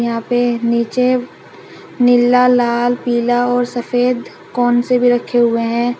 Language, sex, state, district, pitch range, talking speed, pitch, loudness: Hindi, female, Uttar Pradesh, Shamli, 240-245 Hz, 140 wpm, 245 Hz, -15 LUFS